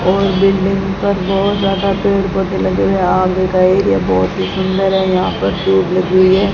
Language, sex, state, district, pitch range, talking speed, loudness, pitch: Hindi, female, Rajasthan, Bikaner, 185-195 Hz, 210 wpm, -14 LUFS, 190 Hz